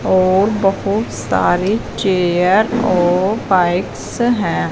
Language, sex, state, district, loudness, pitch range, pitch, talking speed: Hindi, female, Punjab, Fazilka, -15 LUFS, 175-210 Hz, 185 Hz, 90 wpm